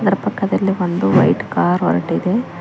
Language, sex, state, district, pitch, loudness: Kannada, female, Karnataka, Koppal, 175 Hz, -17 LUFS